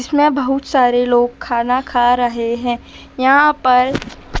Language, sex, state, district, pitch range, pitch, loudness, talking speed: Hindi, female, Madhya Pradesh, Dhar, 245-270 Hz, 250 Hz, -15 LUFS, 135 wpm